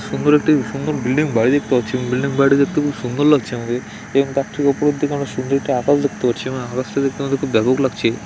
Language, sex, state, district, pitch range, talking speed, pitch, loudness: Bengali, male, West Bengal, Dakshin Dinajpur, 125-145 Hz, 260 wpm, 135 Hz, -18 LUFS